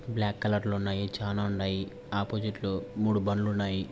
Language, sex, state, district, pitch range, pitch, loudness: Telugu, male, Andhra Pradesh, Anantapur, 100-105 Hz, 100 Hz, -31 LUFS